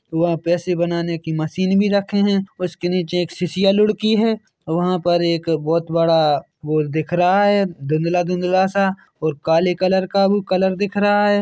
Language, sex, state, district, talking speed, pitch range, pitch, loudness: Hindi, male, Chhattisgarh, Bilaspur, 195 wpm, 165-195 Hz, 180 Hz, -19 LUFS